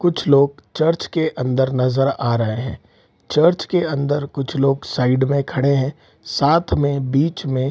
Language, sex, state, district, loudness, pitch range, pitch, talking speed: Hindi, male, Bihar, Saran, -19 LUFS, 130-150 Hz, 140 Hz, 180 wpm